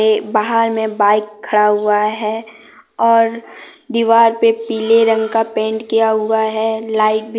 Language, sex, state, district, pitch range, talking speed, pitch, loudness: Hindi, female, Jharkhand, Deoghar, 215-225 Hz, 145 wpm, 220 Hz, -15 LUFS